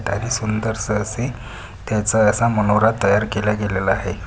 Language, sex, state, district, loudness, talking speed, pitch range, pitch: Marathi, male, Maharashtra, Pune, -19 LUFS, 110 wpm, 100-110 Hz, 105 Hz